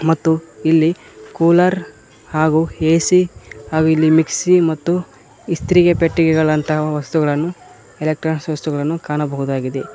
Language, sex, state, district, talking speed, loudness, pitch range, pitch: Kannada, male, Karnataka, Koppal, 90 wpm, -16 LUFS, 150-170 Hz, 160 Hz